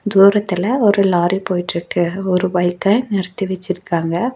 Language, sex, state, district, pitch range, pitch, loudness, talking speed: Tamil, female, Tamil Nadu, Nilgiris, 180-200 Hz, 185 Hz, -17 LUFS, 110 wpm